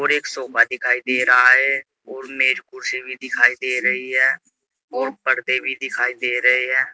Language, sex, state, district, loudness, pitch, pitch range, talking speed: Hindi, male, Uttar Pradesh, Saharanpur, -18 LUFS, 130 Hz, 125-130 Hz, 200 wpm